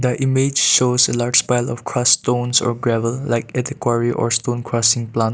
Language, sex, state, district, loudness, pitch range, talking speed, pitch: English, male, Nagaland, Kohima, -17 LUFS, 115-125 Hz, 190 wpm, 120 Hz